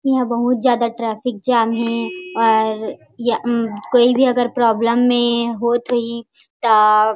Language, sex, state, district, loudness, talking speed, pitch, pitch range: Chhattisgarhi, female, Chhattisgarh, Raigarh, -17 LUFS, 145 wpm, 235 Hz, 230-245 Hz